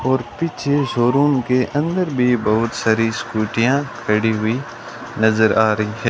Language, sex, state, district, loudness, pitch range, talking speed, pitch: Hindi, male, Rajasthan, Bikaner, -18 LUFS, 110-135 Hz, 155 wpm, 120 Hz